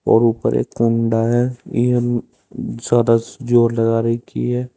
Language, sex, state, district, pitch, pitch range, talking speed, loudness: Hindi, male, Uttar Pradesh, Saharanpur, 115 Hz, 115-120 Hz, 140 wpm, -18 LUFS